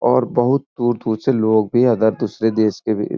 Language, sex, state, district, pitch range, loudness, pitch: Hindi, male, Uttar Pradesh, Etah, 110-125 Hz, -18 LUFS, 115 Hz